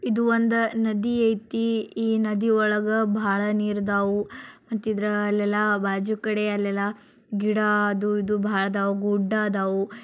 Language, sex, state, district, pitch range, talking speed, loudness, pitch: Kannada, male, Karnataka, Bijapur, 205-220 Hz, 95 wpm, -24 LUFS, 210 Hz